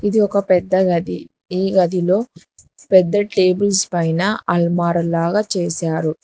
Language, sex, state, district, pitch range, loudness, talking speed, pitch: Telugu, female, Telangana, Hyderabad, 170-200 Hz, -17 LUFS, 115 wpm, 185 Hz